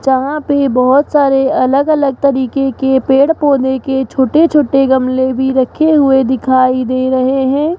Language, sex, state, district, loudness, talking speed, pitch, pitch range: Hindi, female, Rajasthan, Jaipur, -12 LUFS, 160 wpm, 265 Hz, 260-280 Hz